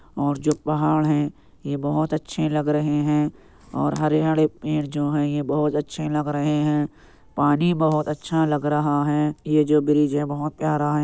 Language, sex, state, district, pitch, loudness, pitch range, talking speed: Hindi, male, Uttar Pradesh, Jyotiba Phule Nagar, 150 Hz, -22 LUFS, 145-155 Hz, 190 wpm